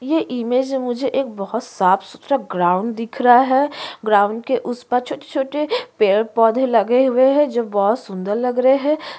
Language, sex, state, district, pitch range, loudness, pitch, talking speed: Hindi, female, Uttarakhand, Tehri Garhwal, 220-270 Hz, -18 LUFS, 245 Hz, 195 wpm